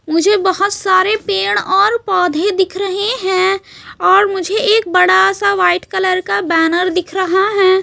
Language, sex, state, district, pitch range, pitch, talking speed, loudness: Hindi, female, Chhattisgarh, Raipur, 370-400 Hz, 380 Hz, 160 wpm, -13 LUFS